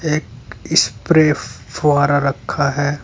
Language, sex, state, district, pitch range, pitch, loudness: Hindi, male, Uttar Pradesh, Saharanpur, 125-150 Hz, 145 Hz, -17 LUFS